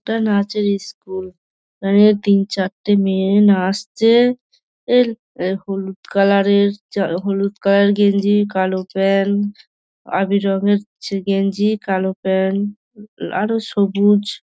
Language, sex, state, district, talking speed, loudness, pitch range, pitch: Bengali, female, West Bengal, Dakshin Dinajpur, 120 wpm, -17 LUFS, 195-205 Hz, 200 Hz